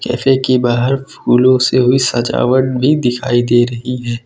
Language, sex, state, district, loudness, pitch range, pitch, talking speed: Hindi, male, Uttar Pradesh, Lucknow, -13 LUFS, 120-130 Hz, 125 Hz, 170 wpm